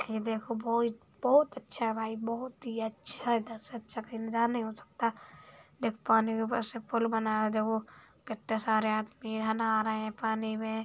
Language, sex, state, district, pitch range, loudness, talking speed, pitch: Hindi, male, Uttar Pradesh, Hamirpur, 220-235 Hz, -32 LUFS, 205 wpm, 225 Hz